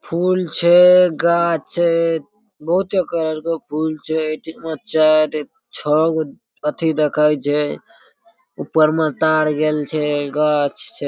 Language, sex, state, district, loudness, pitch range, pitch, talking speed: Maithili, male, Bihar, Darbhanga, -17 LUFS, 150-170 Hz, 160 Hz, 130 wpm